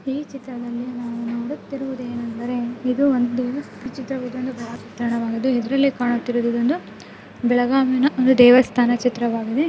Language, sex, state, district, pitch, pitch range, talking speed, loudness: Kannada, female, Karnataka, Belgaum, 245 Hz, 240-265 Hz, 85 wpm, -21 LUFS